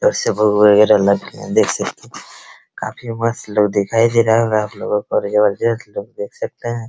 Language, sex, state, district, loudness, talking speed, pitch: Hindi, male, Bihar, Araria, -16 LUFS, 185 wpm, 115 Hz